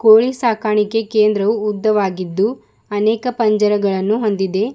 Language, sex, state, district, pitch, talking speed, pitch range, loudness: Kannada, female, Karnataka, Bidar, 215 Hz, 90 wpm, 205-225 Hz, -17 LUFS